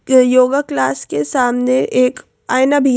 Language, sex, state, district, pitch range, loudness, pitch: Hindi, female, Madhya Pradesh, Bhopal, 245-265 Hz, -15 LUFS, 255 Hz